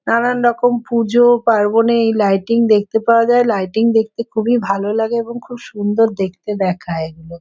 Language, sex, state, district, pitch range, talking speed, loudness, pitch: Bengali, female, West Bengal, Jhargram, 205-235 Hz, 170 wpm, -15 LUFS, 225 Hz